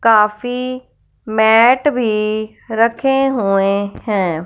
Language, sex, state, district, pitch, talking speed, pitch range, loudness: Hindi, female, Punjab, Fazilka, 220 Hz, 80 wpm, 210-250 Hz, -15 LUFS